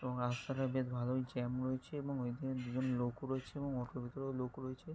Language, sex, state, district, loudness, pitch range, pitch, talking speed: Bengali, male, West Bengal, Jalpaiguri, -40 LUFS, 125-135 Hz, 130 Hz, 180 wpm